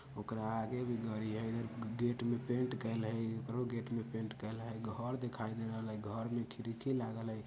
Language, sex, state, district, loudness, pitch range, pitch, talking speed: Bajjika, male, Bihar, Vaishali, -40 LUFS, 110-120 Hz, 115 Hz, 215 wpm